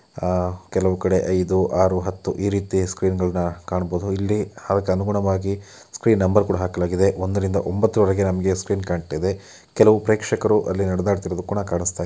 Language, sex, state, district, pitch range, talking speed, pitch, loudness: Kannada, male, Karnataka, Mysore, 90-100 Hz, 150 wpm, 95 Hz, -21 LUFS